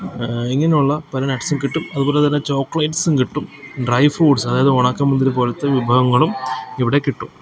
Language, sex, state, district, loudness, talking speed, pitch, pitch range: Malayalam, male, Kerala, Kozhikode, -17 LUFS, 140 wpm, 135 Hz, 125-145 Hz